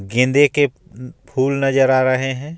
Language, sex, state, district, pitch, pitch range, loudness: Hindi, male, Jharkhand, Ranchi, 135 Hz, 130-140 Hz, -17 LUFS